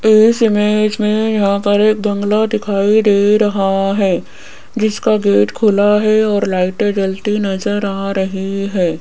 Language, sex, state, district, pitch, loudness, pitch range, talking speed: Hindi, female, Rajasthan, Jaipur, 205 Hz, -14 LUFS, 195-215 Hz, 145 wpm